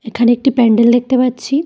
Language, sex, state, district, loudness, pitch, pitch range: Bengali, female, Tripura, Dhalai, -12 LUFS, 245 Hz, 235-260 Hz